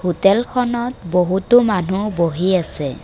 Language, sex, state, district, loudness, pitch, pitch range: Assamese, female, Assam, Kamrup Metropolitan, -17 LUFS, 190 Hz, 180-235 Hz